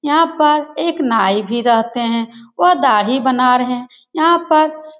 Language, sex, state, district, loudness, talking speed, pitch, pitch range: Hindi, female, Bihar, Jamui, -15 LUFS, 180 wpm, 260 Hz, 235-310 Hz